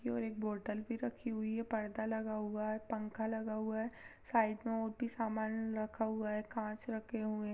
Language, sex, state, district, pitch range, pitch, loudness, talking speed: Hindi, female, Rajasthan, Churu, 215-225 Hz, 220 Hz, -39 LUFS, 215 wpm